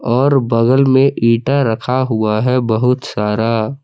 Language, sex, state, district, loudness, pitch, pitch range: Hindi, male, Jharkhand, Palamu, -14 LUFS, 125 Hz, 110-130 Hz